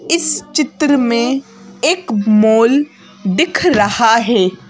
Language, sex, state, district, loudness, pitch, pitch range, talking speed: Hindi, female, Madhya Pradesh, Bhopal, -14 LUFS, 235 Hz, 215-290 Hz, 100 wpm